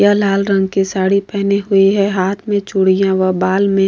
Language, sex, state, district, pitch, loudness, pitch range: Hindi, female, Uttar Pradesh, Jalaun, 195 Hz, -14 LUFS, 190-200 Hz